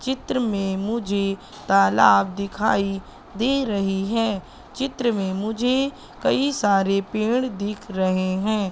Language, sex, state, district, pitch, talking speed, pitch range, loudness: Hindi, female, Madhya Pradesh, Katni, 205 Hz, 115 wpm, 195-235 Hz, -22 LUFS